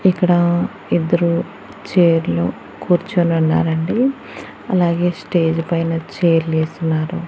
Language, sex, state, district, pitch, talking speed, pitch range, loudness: Telugu, female, Andhra Pradesh, Annamaya, 170 Hz, 105 wpm, 165-175 Hz, -17 LUFS